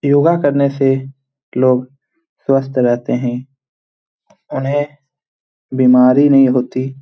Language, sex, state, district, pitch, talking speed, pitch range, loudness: Hindi, male, Bihar, Jamui, 135 Hz, 95 wpm, 130-145 Hz, -14 LUFS